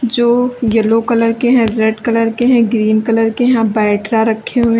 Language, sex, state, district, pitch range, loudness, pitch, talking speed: Hindi, female, Uttar Pradesh, Lalitpur, 225-240 Hz, -13 LUFS, 230 Hz, 210 wpm